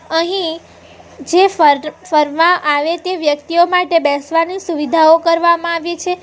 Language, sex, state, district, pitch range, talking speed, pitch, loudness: Gujarati, female, Gujarat, Valsad, 305-350 Hz, 125 wpm, 330 Hz, -14 LUFS